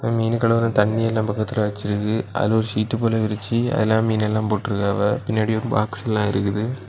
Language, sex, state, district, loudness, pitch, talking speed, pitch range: Tamil, male, Tamil Nadu, Kanyakumari, -21 LUFS, 110 Hz, 165 wpm, 105-115 Hz